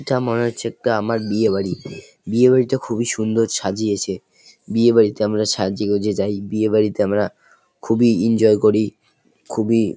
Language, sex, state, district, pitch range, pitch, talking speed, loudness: Bengali, male, West Bengal, Jalpaiguri, 105-115 Hz, 110 Hz, 160 wpm, -19 LUFS